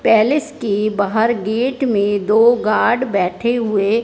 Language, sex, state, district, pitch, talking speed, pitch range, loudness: Hindi, male, Punjab, Fazilka, 220 Hz, 135 wpm, 205-240 Hz, -16 LUFS